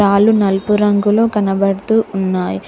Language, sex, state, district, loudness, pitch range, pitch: Telugu, female, Telangana, Hyderabad, -14 LUFS, 195-210 Hz, 200 Hz